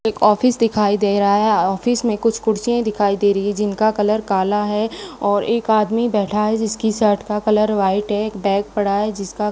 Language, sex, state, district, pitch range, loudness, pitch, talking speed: Hindi, female, Rajasthan, Bikaner, 205-220 Hz, -18 LUFS, 210 Hz, 220 wpm